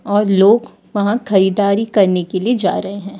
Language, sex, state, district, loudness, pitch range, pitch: Hindi, female, Odisha, Sambalpur, -15 LUFS, 195-215 Hz, 200 Hz